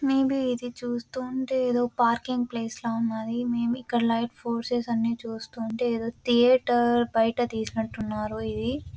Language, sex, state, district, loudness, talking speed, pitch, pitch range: Telugu, female, Andhra Pradesh, Anantapur, -26 LUFS, 290 wpm, 240 Hz, 230-245 Hz